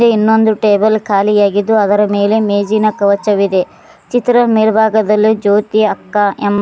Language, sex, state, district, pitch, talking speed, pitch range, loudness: Kannada, female, Karnataka, Koppal, 210 Hz, 110 wpm, 205-220 Hz, -12 LUFS